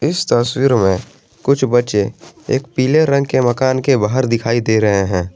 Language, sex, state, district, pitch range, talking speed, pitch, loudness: Hindi, male, Jharkhand, Garhwa, 110-135 Hz, 180 wpm, 125 Hz, -15 LUFS